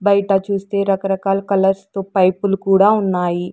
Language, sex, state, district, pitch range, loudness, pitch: Telugu, female, Andhra Pradesh, Sri Satya Sai, 190-200 Hz, -17 LUFS, 195 Hz